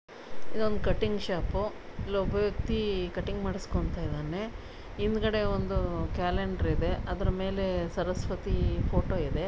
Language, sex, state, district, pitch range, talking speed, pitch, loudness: Kannada, female, Karnataka, Dakshina Kannada, 170-210 Hz, 95 wpm, 190 Hz, -31 LUFS